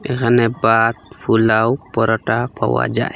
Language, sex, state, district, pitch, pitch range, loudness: Bengali, male, Assam, Hailakandi, 115 Hz, 110-120 Hz, -16 LUFS